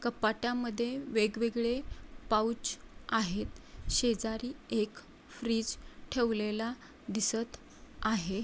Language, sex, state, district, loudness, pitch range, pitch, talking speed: Marathi, female, Maharashtra, Dhule, -34 LUFS, 220-240 Hz, 230 Hz, 70 wpm